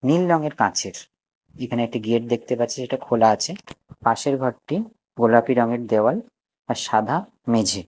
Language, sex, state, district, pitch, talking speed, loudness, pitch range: Bengali, male, Odisha, Nuapada, 120 Hz, 145 wpm, -22 LUFS, 115-140 Hz